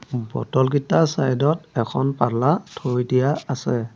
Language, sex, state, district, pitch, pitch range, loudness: Assamese, male, Assam, Sonitpur, 130 Hz, 125-145 Hz, -21 LUFS